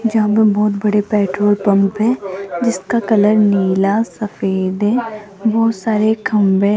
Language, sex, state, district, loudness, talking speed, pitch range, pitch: Hindi, female, Rajasthan, Jaipur, -15 LUFS, 140 wpm, 195-220 Hz, 210 Hz